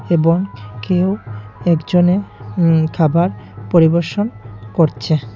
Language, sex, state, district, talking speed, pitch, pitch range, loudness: Bengali, male, Tripura, Unakoti, 80 wpm, 160 Hz, 110-175 Hz, -16 LUFS